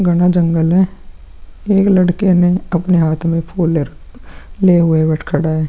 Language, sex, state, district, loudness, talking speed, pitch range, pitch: Hindi, male, Uttar Pradesh, Muzaffarnagar, -14 LUFS, 160 wpm, 160-180 Hz, 170 Hz